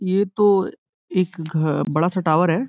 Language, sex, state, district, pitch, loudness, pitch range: Hindi, male, Uttar Pradesh, Gorakhpur, 185 Hz, -20 LUFS, 160-195 Hz